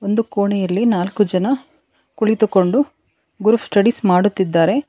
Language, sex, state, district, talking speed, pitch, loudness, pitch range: Kannada, female, Karnataka, Bangalore, 100 wpm, 210 Hz, -17 LUFS, 190-230 Hz